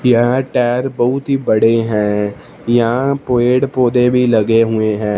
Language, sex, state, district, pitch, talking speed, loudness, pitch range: Hindi, male, Punjab, Fazilka, 120 Hz, 150 wpm, -14 LUFS, 110-125 Hz